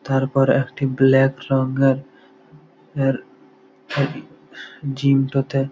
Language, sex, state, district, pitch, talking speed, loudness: Bengali, male, West Bengal, Malda, 135 Hz, 95 wpm, -20 LUFS